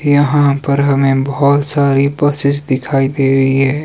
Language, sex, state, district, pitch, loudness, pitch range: Hindi, male, Himachal Pradesh, Shimla, 140 Hz, -13 LUFS, 135-145 Hz